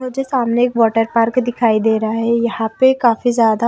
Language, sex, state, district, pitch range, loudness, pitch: Hindi, female, Haryana, Rohtak, 225-245 Hz, -15 LUFS, 235 Hz